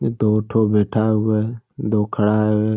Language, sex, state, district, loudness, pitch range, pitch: Hindi, male, Bihar, Darbhanga, -19 LUFS, 105-110 Hz, 110 Hz